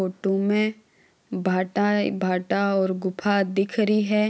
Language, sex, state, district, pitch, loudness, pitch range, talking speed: Marwari, female, Rajasthan, Nagaur, 200 Hz, -23 LUFS, 185-210 Hz, 140 wpm